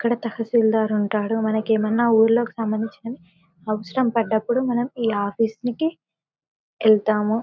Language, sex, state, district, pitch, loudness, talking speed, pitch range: Telugu, female, Telangana, Karimnagar, 225 Hz, -21 LUFS, 115 wpm, 215-235 Hz